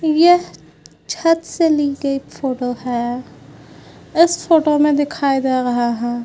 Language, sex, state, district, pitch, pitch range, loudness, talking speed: Hindi, female, Bihar, Vaishali, 280 Hz, 250-325 Hz, -17 LUFS, 125 wpm